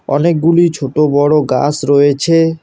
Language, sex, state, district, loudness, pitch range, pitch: Bengali, male, West Bengal, Alipurduar, -12 LUFS, 145-165 Hz, 150 Hz